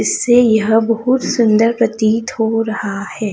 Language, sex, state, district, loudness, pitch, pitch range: Hindi, female, Chhattisgarh, Raipur, -14 LUFS, 225 Hz, 220-230 Hz